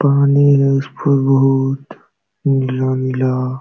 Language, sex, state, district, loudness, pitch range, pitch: Hindi, male, Uttar Pradesh, Jalaun, -15 LUFS, 130-140 Hz, 135 Hz